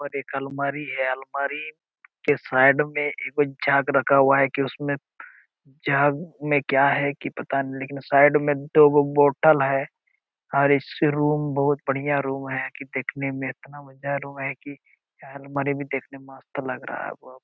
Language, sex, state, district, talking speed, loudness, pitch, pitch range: Hindi, male, Jharkhand, Sahebganj, 195 wpm, -23 LUFS, 140 Hz, 135-145 Hz